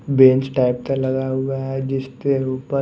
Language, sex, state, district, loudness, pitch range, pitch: Hindi, male, Chhattisgarh, Raipur, -19 LUFS, 130-135 Hz, 135 Hz